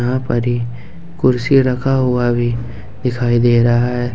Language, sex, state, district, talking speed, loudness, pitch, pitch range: Hindi, male, Jharkhand, Ranchi, 160 wpm, -16 LUFS, 120 Hz, 120-130 Hz